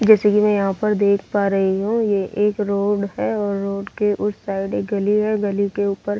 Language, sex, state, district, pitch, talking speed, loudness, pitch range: Hindi, female, Delhi, New Delhi, 205 Hz, 240 wpm, -20 LUFS, 200-210 Hz